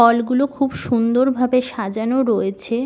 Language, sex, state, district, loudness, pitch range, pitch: Bengali, female, West Bengal, Malda, -19 LUFS, 230-260 Hz, 245 Hz